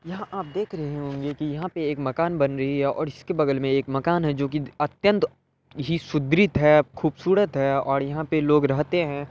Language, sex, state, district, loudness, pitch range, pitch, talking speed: Hindi, male, Bihar, Araria, -24 LUFS, 140-170 Hz, 150 Hz, 220 wpm